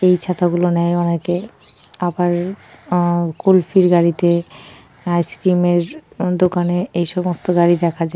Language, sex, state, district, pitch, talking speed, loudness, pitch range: Bengali, female, West Bengal, North 24 Parganas, 175 Hz, 120 wpm, -17 LUFS, 170-180 Hz